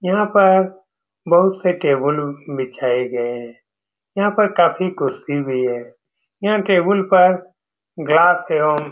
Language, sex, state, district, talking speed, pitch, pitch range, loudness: Hindi, male, Bihar, Saran, 135 wpm, 170 Hz, 135-190 Hz, -17 LUFS